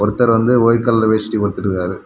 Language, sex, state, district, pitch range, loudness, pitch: Tamil, male, Tamil Nadu, Kanyakumari, 105-115 Hz, -15 LUFS, 110 Hz